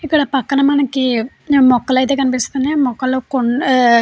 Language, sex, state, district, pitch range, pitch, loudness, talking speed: Telugu, female, Andhra Pradesh, Chittoor, 255-275 Hz, 265 Hz, -15 LUFS, 135 wpm